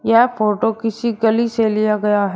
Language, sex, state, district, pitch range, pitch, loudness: Hindi, male, Uttar Pradesh, Shamli, 215-230 Hz, 225 Hz, -17 LUFS